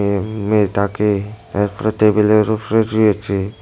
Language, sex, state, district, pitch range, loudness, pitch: Bengali, male, Tripura, West Tripura, 100-110 Hz, -17 LUFS, 105 Hz